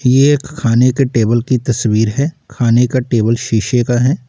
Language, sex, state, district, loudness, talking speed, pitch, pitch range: Hindi, male, Uttar Pradesh, Lalitpur, -14 LUFS, 195 wpm, 125 Hz, 115-135 Hz